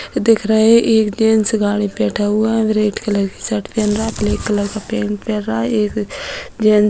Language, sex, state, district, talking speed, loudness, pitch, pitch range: Hindi, female, Bihar, Bhagalpur, 250 wpm, -16 LUFS, 215 Hz, 210-220 Hz